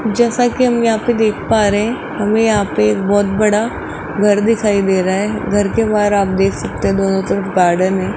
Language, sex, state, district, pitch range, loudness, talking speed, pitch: Hindi, male, Rajasthan, Jaipur, 195-225 Hz, -15 LUFS, 215 wpm, 205 Hz